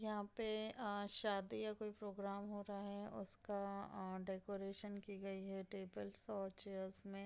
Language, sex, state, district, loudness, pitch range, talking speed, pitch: Hindi, female, Bihar, Darbhanga, -46 LUFS, 195-205 Hz, 165 wpm, 200 Hz